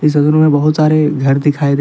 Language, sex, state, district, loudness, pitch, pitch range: Hindi, male, Jharkhand, Deoghar, -12 LUFS, 150 Hz, 145-155 Hz